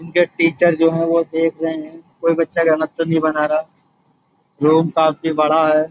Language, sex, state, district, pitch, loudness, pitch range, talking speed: Hindi, male, Uttar Pradesh, Budaun, 160 Hz, -17 LUFS, 155-165 Hz, 195 wpm